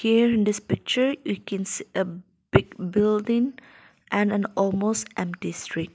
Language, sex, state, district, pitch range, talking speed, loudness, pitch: English, female, Nagaland, Dimapur, 190-230 Hz, 140 wpm, -25 LUFS, 205 Hz